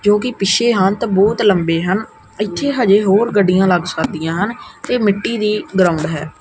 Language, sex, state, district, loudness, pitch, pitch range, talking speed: Punjabi, male, Punjab, Kapurthala, -15 LUFS, 200 Hz, 180-215 Hz, 185 wpm